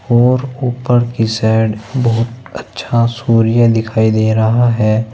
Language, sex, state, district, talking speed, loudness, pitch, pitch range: Hindi, male, Uttar Pradesh, Saharanpur, 130 wpm, -14 LUFS, 115 Hz, 110-120 Hz